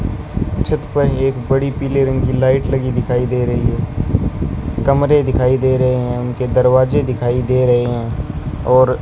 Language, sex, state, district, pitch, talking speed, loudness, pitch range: Hindi, male, Rajasthan, Bikaner, 125 Hz, 175 wpm, -16 LUFS, 120-135 Hz